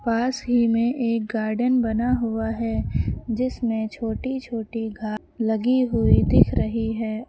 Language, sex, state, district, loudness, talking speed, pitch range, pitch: Hindi, female, Uttar Pradesh, Lucknow, -23 LUFS, 140 wpm, 225-245 Hz, 230 Hz